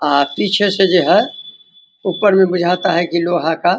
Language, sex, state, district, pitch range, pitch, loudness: Hindi, male, Bihar, Vaishali, 170-190 Hz, 175 Hz, -15 LUFS